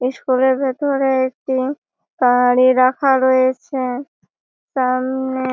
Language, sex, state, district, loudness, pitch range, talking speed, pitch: Bengali, female, West Bengal, Malda, -17 LUFS, 255-265 Hz, 85 wpm, 260 Hz